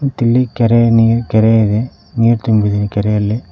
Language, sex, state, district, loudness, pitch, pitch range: Kannada, male, Karnataka, Koppal, -13 LUFS, 115 Hz, 105-115 Hz